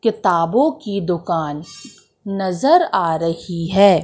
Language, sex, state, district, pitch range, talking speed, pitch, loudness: Hindi, female, Madhya Pradesh, Katni, 165-225 Hz, 105 wpm, 190 Hz, -18 LUFS